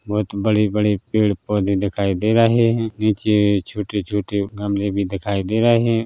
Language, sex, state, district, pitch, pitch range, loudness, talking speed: Hindi, male, Chhattisgarh, Bilaspur, 105 Hz, 100-110 Hz, -19 LUFS, 170 wpm